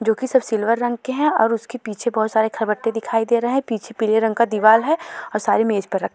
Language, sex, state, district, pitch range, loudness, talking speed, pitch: Hindi, female, Uttar Pradesh, Jalaun, 220-240 Hz, -19 LUFS, 280 wpm, 225 Hz